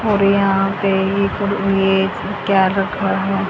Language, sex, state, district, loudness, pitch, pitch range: Hindi, female, Haryana, Charkhi Dadri, -17 LUFS, 195 Hz, 195-200 Hz